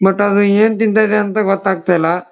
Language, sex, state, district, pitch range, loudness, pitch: Kannada, male, Karnataka, Dharwad, 190-215 Hz, -14 LUFS, 200 Hz